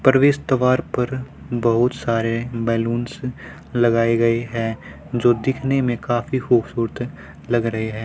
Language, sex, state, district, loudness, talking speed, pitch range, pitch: Hindi, male, Haryana, Rohtak, -21 LUFS, 125 wpm, 115-130 Hz, 120 Hz